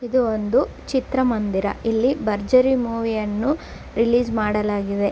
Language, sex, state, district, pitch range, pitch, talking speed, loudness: Kannada, female, Karnataka, Belgaum, 210-255 Hz, 225 Hz, 115 wpm, -21 LUFS